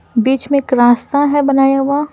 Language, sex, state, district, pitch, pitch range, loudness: Hindi, female, Bihar, Patna, 275 Hz, 260-285 Hz, -13 LUFS